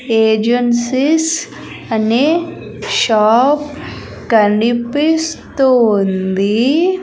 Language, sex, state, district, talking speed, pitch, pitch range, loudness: Telugu, female, Andhra Pradesh, Sri Satya Sai, 45 wpm, 240 Hz, 220-295 Hz, -14 LUFS